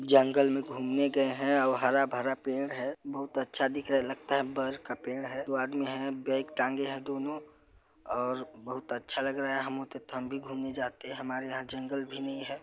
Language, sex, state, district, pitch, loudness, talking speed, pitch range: Hindi, male, Chhattisgarh, Balrampur, 135 Hz, -31 LUFS, 215 wpm, 130-140 Hz